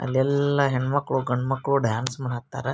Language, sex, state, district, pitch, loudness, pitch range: Kannada, male, Karnataka, Bijapur, 135 Hz, -24 LUFS, 130-140 Hz